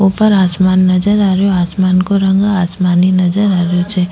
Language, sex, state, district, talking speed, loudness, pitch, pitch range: Rajasthani, female, Rajasthan, Nagaur, 190 wpm, -12 LUFS, 185 Hz, 180-195 Hz